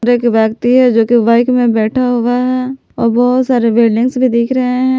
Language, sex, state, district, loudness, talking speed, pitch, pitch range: Hindi, female, Jharkhand, Palamu, -12 LUFS, 215 wpm, 245 Hz, 235-255 Hz